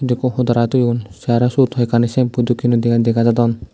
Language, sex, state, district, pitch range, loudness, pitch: Chakma, male, Tripura, Dhalai, 115-125 Hz, -16 LUFS, 120 Hz